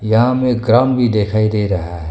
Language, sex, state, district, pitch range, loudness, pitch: Hindi, male, Arunachal Pradesh, Longding, 105-125 Hz, -15 LUFS, 110 Hz